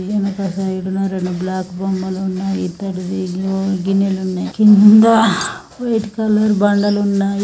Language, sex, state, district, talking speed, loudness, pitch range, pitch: Telugu, female, Telangana, Nalgonda, 120 wpm, -16 LUFS, 190-205 Hz, 195 Hz